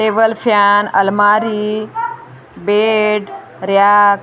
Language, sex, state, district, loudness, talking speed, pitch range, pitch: Hindi, female, Maharashtra, Gondia, -13 LUFS, 85 wpm, 205-220 Hz, 210 Hz